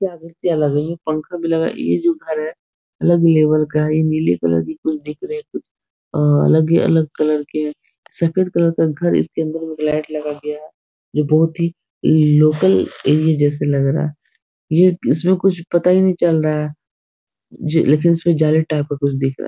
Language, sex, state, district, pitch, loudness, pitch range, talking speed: Hindi, male, Bihar, Supaul, 155 Hz, -17 LUFS, 150-170 Hz, 235 wpm